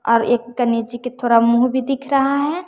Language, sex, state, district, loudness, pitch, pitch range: Hindi, female, Bihar, West Champaran, -17 LUFS, 245 Hz, 235-270 Hz